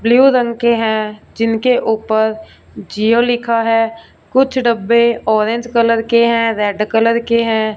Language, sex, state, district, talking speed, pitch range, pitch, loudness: Hindi, female, Punjab, Fazilka, 145 wpm, 220-235 Hz, 230 Hz, -14 LUFS